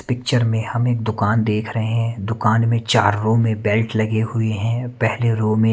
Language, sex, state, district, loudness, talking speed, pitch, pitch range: Hindi, male, Haryana, Charkhi Dadri, -19 LUFS, 210 wpm, 110 Hz, 110-115 Hz